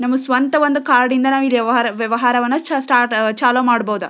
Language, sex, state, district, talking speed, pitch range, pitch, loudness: Kannada, female, Karnataka, Belgaum, 145 wpm, 235-265 Hz, 245 Hz, -15 LUFS